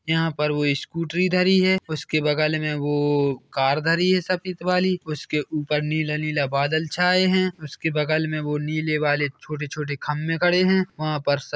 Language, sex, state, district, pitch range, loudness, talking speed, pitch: Hindi, male, Chhattisgarh, Bilaspur, 150-175 Hz, -22 LUFS, 175 wpm, 155 Hz